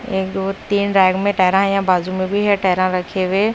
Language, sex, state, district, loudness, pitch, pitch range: Hindi, female, Punjab, Kapurthala, -17 LUFS, 190 Hz, 185-200 Hz